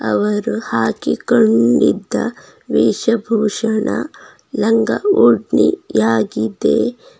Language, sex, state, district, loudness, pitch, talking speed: Kannada, female, Karnataka, Bidar, -16 LUFS, 215 Hz, 50 wpm